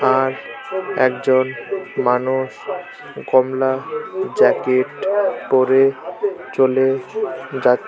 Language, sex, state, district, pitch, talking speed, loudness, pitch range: Bengali, male, West Bengal, Jalpaiguri, 130 Hz, 60 wpm, -19 LUFS, 130-190 Hz